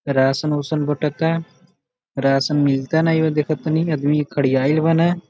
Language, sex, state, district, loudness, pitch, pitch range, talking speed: Bhojpuri, male, Uttar Pradesh, Gorakhpur, -19 LUFS, 150 Hz, 140-160 Hz, 100 wpm